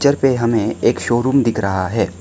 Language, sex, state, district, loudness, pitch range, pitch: Hindi, male, Arunachal Pradesh, Lower Dibang Valley, -17 LUFS, 105-130 Hz, 115 Hz